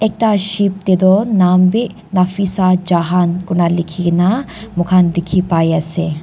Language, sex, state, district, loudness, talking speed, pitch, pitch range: Nagamese, female, Nagaland, Dimapur, -14 LUFS, 135 wpm, 185 Hz, 175-195 Hz